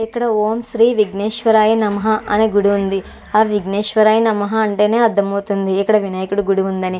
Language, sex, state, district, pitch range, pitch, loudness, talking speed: Telugu, female, Andhra Pradesh, Chittoor, 200-220 Hz, 210 Hz, -16 LUFS, 170 wpm